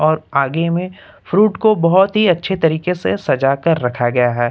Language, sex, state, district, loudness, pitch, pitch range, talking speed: Hindi, male, Uttar Pradesh, Lucknow, -16 LUFS, 165 Hz, 135-185 Hz, 200 wpm